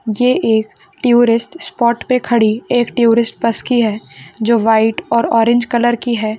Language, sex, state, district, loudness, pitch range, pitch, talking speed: Hindi, female, Rajasthan, Churu, -14 LUFS, 225-240 Hz, 235 Hz, 170 wpm